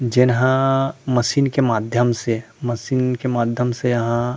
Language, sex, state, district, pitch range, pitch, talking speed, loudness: Chhattisgarhi, male, Chhattisgarh, Rajnandgaon, 120-130 Hz, 125 Hz, 135 wpm, -19 LUFS